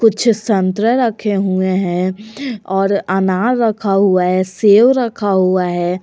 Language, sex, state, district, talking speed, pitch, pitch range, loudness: Hindi, female, Jharkhand, Garhwa, 140 wpm, 195 Hz, 185-225 Hz, -15 LUFS